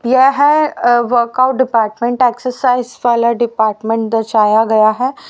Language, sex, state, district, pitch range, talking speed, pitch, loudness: Hindi, female, Haryana, Rohtak, 225-255 Hz, 115 wpm, 240 Hz, -13 LUFS